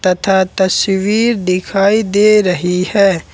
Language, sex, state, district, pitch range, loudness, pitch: Hindi, male, Jharkhand, Ranchi, 185-205 Hz, -13 LUFS, 195 Hz